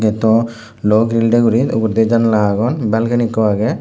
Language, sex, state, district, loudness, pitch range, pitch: Chakma, male, Tripura, Dhalai, -14 LUFS, 110-115 Hz, 115 Hz